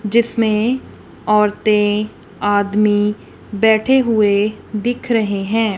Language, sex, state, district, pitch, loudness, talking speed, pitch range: Hindi, female, Punjab, Kapurthala, 215 Hz, -16 LUFS, 85 wpm, 205-225 Hz